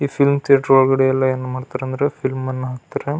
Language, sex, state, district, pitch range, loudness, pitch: Kannada, male, Karnataka, Belgaum, 130-140 Hz, -18 LUFS, 130 Hz